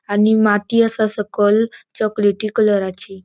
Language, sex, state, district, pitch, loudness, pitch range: Konkani, female, Goa, North and South Goa, 210 Hz, -17 LUFS, 205-220 Hz